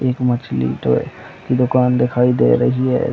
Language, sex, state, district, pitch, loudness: Hindi, male, Chhattisgarh, Bilaspur, 120 Hz, -17 LUFS